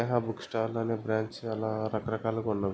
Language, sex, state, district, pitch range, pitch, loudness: Telugu, male, Andhra Pradesh, Guntur, 110-115 Hz, 110 Hz, -32 LUFS